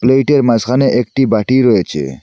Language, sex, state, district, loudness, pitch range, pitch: Bengali, male, Assam, Hailakandi, -12 LUFS, 115-135 Hz, 125 Hz